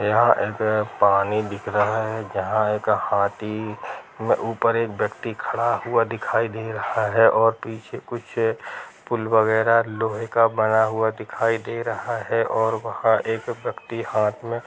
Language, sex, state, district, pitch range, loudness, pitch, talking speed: Hindi, male, Chhattisgarh, Rajnandgaon, 110-115 Hz, -22 LUFS, 110 Hz, 155 wpm